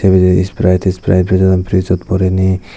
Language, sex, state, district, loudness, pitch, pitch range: Chakma, male, Tripura, Dhalai, -13 LUFS, 95 Hz, 90-95 Hz